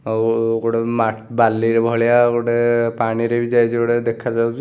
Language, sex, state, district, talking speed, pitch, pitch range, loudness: Odia, male, Odisha, Khordha, 155 wpm, 115 Hz, 115-120 Hz, -18 LUFS